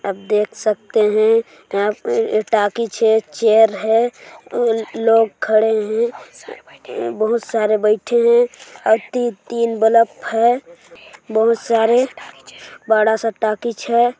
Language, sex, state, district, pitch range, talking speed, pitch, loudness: Hindi, male, Chhattisgarh, Sarguja, 215-235 Hz, 115 wpm, 225 Hz, -17 LUFS